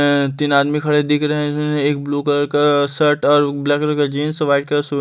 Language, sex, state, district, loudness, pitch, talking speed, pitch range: Hindi, male, Delhi, New Delhi, -17 LUFS, 145 Hz, 225 wpm, 145-150 Hz